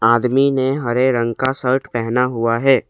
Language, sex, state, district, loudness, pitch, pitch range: Hindi, male, Assam, Kamrup Metropolitan, -17 LUFS, 125 Hz, 120-130 Hz